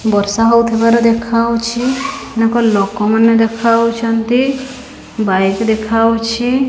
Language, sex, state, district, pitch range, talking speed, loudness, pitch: Odia, female, Odisha, Khordha, 225-235 Hz, 70 wpm, -13 LUFS, 230 Hz